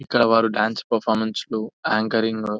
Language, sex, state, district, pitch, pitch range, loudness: Telugu, male, Telangana, Nalgonda, 110 Hz, 110-115 Hz, -21 LUFS